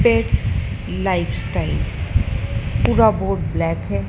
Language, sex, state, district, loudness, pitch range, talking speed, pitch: Hindi, female, Madhya Pradesh, Dhar, -20 LUFS, 90-110 Hz, 90 wpm, 100 Hz